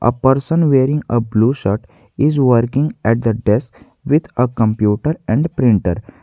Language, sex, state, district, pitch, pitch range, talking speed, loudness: English, male, Jharkhand, Garhwa, 120 Hz, 110-140 Hz, 155 wpm, -16 LUFS